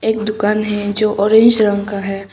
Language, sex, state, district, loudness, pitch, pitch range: Hindi, female, Arunachal Pradesh, Papum Pare, -14 LUFS, 210 Hz, 205-215 Hz